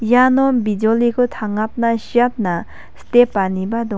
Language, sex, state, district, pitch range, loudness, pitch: Garo, female, Meghalaya, West Garo Hills, 215-245 Hz, -17 LUFS, 230 Hz